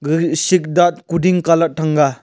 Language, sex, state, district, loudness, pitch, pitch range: Wancho, male, Arunachal Pradesh, Longding, -15 LUFS, 165 Hz, 155-175 Hz